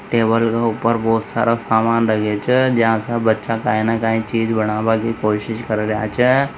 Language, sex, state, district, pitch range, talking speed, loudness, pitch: Marwari, male, Rajasthan, Nagaur, 110-115 Hz, 190 wpm, -18 LUFS, 115 Hz